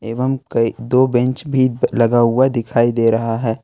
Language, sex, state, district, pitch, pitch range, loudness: Hindi, male, Jharkhand, Ranchi, 120 Hz, 115-130 Hz, -16 LUFS